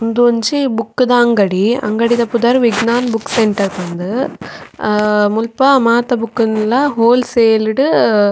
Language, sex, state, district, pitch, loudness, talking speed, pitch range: Tulu, female, Karnataka, Dakshina Kannada, 230 Hz, -14 LUFS, 135 wpm, 215-245 Hz